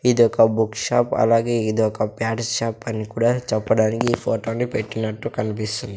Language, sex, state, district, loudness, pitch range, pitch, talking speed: Telugu, male, Andhra Pradesh, Sri Satya Sai, -21 LUFS, 110-115 Hz, 115 Hz, 160 wpm